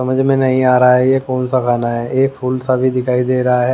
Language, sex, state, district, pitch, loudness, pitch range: Hindi, male, Haryana, Jhajjar, 130 Hz, -14 LUFS, 125-130 Hz